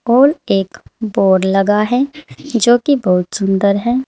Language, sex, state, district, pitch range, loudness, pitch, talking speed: Hindi, female, Uttar Pradesh, Saharanpur, 195-250 Hz, -14 LUFS, 220 Hz, 145 wpm